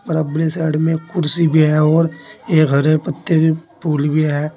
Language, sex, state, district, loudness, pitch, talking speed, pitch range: Hindi, male, Uttar Pradesh, Saharanpur, -16 LUFS, 160 Hz, 185 wpm, 155-165 Hz